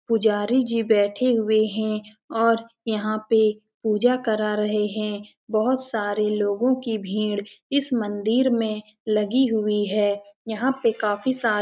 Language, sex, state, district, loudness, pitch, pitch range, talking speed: Hindi, female, Uttar Pradesh, Etah, -23 LUFS, 215 Hz, 210-230 Hz, 145 wpm